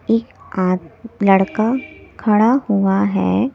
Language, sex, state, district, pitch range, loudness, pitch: Hindi, female, Delhi, New Delhi, 195-230 Hz, -17 LUFS, 210 Hz